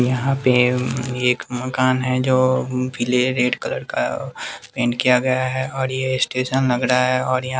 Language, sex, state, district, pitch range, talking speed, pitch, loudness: Hindi, male, Bihar, West Champaran, 125-130 Hz, 205 wpm, 130 Hz, -20 LUFS